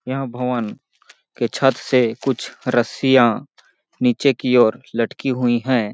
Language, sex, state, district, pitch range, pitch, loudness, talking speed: Hindi, male, Chhattisgarh, Balrampur, 120-130 Hz, 125 Hz, -19 LUFS, 130 wpm